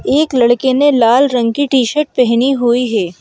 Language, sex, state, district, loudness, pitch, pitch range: Hindi, female, Madhya Pradesh, Bhopal, -12 LUFS, 250 Hz, 240-275 Hz